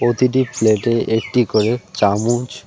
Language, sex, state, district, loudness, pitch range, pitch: Bengali, male, West Bengal, Alipurduar, -17 LUFS, 110-125 Hz, 115 Hz